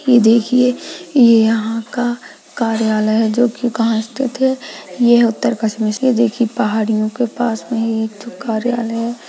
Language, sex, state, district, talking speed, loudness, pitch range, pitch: Hindi, female, Uttarakhand, Uttarkashi, 160 wpm, -16 LUFS, 220-245 Hz, 235 Hz